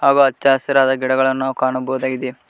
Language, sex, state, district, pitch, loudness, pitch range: Kannada, male, Karnataka, Koppal, 130 Hz, -17 LUFS, 130-135 Hz